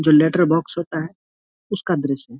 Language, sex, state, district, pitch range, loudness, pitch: Hindi, male, Bihar, Saharsa, 150-175 Hz, -20 LUFS, 160 Hz